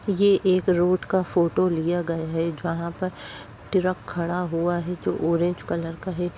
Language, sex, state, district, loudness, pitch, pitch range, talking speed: Hindi, female, Uttar Pradesh, Jyotiba Phule Nagar, -24 LUFS, 175 Hz, 170-185 Hz, 180 wpm